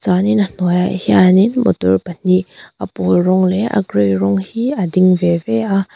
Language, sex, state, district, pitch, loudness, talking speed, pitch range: Mizo, female, Mizoram, Aizawl, 185 Hz, -14 LUFS, 200 wpm, 175-200 Hz